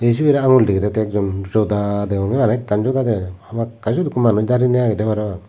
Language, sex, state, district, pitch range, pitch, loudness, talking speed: Chakma, male, Tripura, Unakoti, 105-125 Hz, 110 Hz, -18 LUFS, 220 wpm